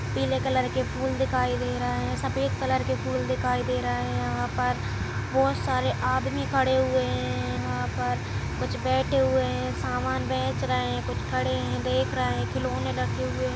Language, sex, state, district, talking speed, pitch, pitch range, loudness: Kumaoni, female, Uttarakhand, Tehri Garhwal, 200 wpm, 125 Hz, 125-130 Hz, -27 LUFS